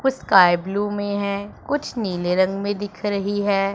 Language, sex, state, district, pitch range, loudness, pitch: Hindi, female, Punjab, Pathankot, 195-205 Hz, -21 LUFS, 200 Hz